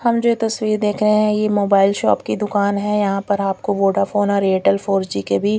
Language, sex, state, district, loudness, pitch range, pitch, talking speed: Hindi, female, Bihar, Katihar, -18 LUFS, 195-210 Hz, 205 Hz, 255 wpm